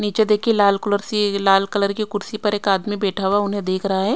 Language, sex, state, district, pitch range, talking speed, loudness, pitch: Hindi, female, Odisha, Sambalpur, 195-210 Hz, 260 wpm, -19 LUFS, 205 Hz